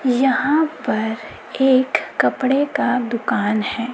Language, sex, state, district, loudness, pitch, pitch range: Hindi, female, Chhattisgarh, Raipur, -19 LUFS, 250 Hz, 230-270 Hz